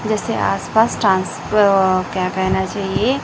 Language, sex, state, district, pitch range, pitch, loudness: Hindi, female, Chhattisgarh, Raipur, 190-215 Hz, 195 Hz, -17 LUFS